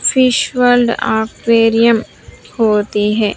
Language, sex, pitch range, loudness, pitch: Hindi, female, 220-245 Hz, -13 LUFS, 230 Hz